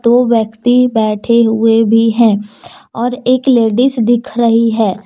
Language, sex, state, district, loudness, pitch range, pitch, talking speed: Hindi, female, Jharkhand, Deoghar, -12 LUFS, 225-245 Hz, 230 Hz, 140 wpm